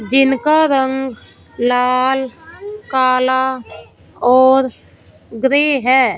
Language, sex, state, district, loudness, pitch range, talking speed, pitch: Hindi, female, Punjab, Fazilka, -14 LUFS, 255-270 Hz, 70 wpm, 265 Hz